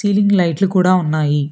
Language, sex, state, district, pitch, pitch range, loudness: Telugu, female, Telangana, Hyderabad, 185 Hz, 155-195 Hz, -15 LUFS